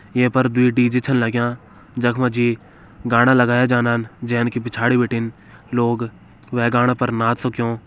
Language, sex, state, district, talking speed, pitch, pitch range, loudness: Kumaoni, male, Uttarakhand, Uttarkashi, 170 wpm, 120 Hz, 115-125 Hz, -18 LUFS